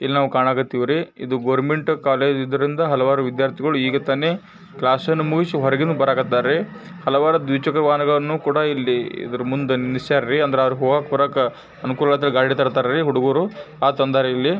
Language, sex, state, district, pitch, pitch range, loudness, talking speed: Kannada, male, Karnataka, Bijapur, 140 Hz, 130-155 Hz, -19 LUFS, 115 wpm